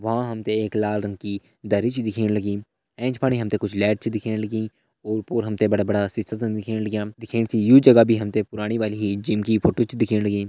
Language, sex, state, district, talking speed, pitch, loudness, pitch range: Hindi, male, Uttarakhand, Uttarkashi, 230 wpm, 110 Hz, -22 LUFS, 105-115 Hz